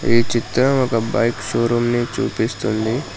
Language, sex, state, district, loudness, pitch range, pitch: Telugu, male, Telangana, Hyderabad, -19 LUFS, 110-120 Hz, 115 Hz